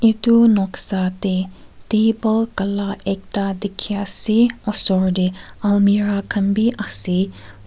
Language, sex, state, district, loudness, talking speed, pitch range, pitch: Nagamese, female, Nagaland, Kohima, -18 LUFS, 110 wpm, 190-220 Hz, 200 Hz